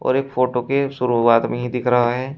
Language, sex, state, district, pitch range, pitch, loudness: Hindi, male, Uttar Pradesh, Shamli, 120-130 Hz, 125 Hz, -19 LUFS